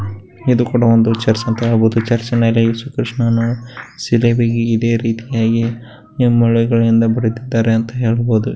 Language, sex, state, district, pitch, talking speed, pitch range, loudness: Kannada, male, Karnataka, Bellary, 115 Hz, 110 wpm, 115-120 Hz, -15 LUFS